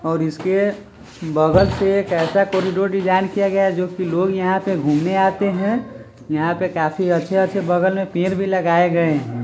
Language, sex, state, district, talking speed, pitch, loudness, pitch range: Hindi, male, Bihar, Sitamarhi, 190 wpm, 185 Hz, -18 LUFS, 165-195 Hz